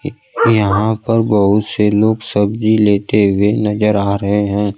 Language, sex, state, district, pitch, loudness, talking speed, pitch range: Hindi, male, Bihar, Kaimur, 105 Hz, -14 LUFS, 150 wpm, 100-110 Hz